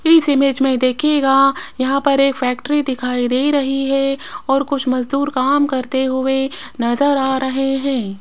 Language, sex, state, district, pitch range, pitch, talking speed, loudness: Hindi, female, Rajasthan, Jaipur, 260-275 Hz, 270 Hz, 160 wpm, -17 LUFS